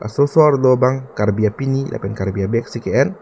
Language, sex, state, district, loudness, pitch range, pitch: Karbi, male, Assam, Karbi Anglong, -17 LUFS, 105-135 Hz, 125 Hz